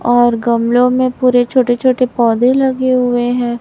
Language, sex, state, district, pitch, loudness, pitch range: Hindi, male, Chhattisgarh, Raipur, 245 Hz, -13 LUFS, 240-255 Hz